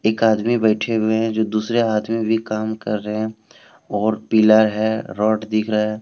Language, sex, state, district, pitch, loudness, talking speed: Hindi, male, Jharkhand, Deoghar, 110 Hz, -19 LUFS, 200 wpm